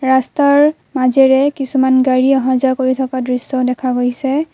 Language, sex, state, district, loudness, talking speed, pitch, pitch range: Assamese, female, Assam, Kamrup Metropolitan, -14 LUFS, 130 wpm, 260 Hz, 255-270 Hz